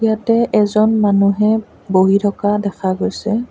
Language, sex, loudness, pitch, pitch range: Assamese, female, -15 LUFS, 210 Hz, 200-220 Hz